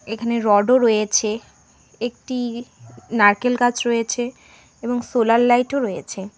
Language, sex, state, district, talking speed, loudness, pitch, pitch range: Bengali, female, West Bengal, Alipurduar, 105 wpm, -19 LUFS, 235 Hz, 215-245 Hz